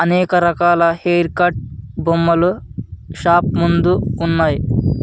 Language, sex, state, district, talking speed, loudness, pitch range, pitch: Telugu, male, Andhra Pradesh, Anantapur, 95 wpm, -15 LUFS, 160-175 Hz, 170 Hz